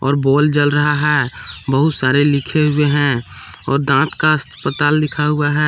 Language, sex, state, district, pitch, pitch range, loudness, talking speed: Hindi, male, Jharkhand, Palamu, 145 Hz, 135-150 Hz, -15 LUFS, 180 wpm